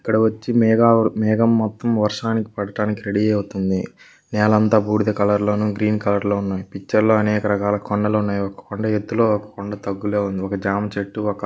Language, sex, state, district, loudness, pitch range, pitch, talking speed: Telugu, male, Andhra Pradesh, Chittoor, -20 LUFS, 100-110 Hz, 105 Hz, 135 wpm